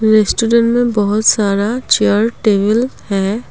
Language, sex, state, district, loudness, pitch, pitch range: Hindi, female, Assam, Kamrup Metropolitan, -14 LUFS, 215 Hz, 205-230 Hz